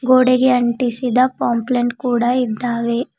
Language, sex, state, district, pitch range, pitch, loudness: Kannada, female, Karnataka, Bidar, 240-255 Hz, 245 Hz, -17 LUFS